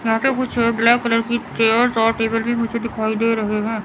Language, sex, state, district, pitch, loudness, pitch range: Hindi, female, Chandigarh, Chandigarh, 230 Hz, -18 LUFS, 225-235 Hz